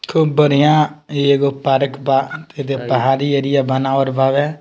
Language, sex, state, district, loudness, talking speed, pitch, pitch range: Bhojpuri, male, Bihar, Muzaffarpur, -16 LUFS, 130 wpm, 140 Hz, 135-150 Hz